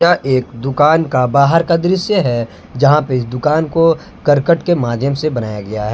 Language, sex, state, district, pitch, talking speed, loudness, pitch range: Hindi, male, Jharkhand, Palamu, 140 Hz, 200 wpm, -14 LUFS, 125-165 Hz